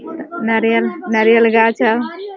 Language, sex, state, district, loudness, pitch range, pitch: Hindi, female, Jharkhand, Sahebganj, -14 LUFS, 225-245 Hz, 230 Hz